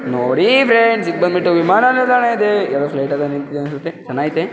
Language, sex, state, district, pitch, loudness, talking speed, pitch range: Kannada, male, Karnataka, Belgaum, 170 Hz, -15 LUFS, 160 wpm, 145-225 Hz